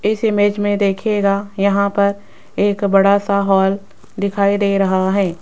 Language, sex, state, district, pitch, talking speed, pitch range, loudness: Hindi, female, Rajasthan, Jaipur, 200 Hz, 155 wpm, 195-205 Hz, -16 LUFS